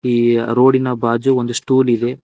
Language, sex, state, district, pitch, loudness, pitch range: Kannada, male, Karnataka, Koppal, 125 Hz, -15 LUFS, 120-130 Hz